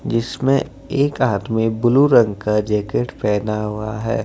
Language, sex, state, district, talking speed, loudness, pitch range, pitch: Hindi, male, Jharkhand, Ranchi, 140 wpm, -18 LUFS, 105-130 Hz, 110 Hz